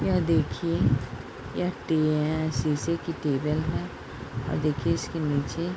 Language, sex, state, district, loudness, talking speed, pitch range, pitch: Hindi, female, Bihar, Bhagalpur, -27 LUFS, 135 wpm, 140-160 Hz, 155 Hz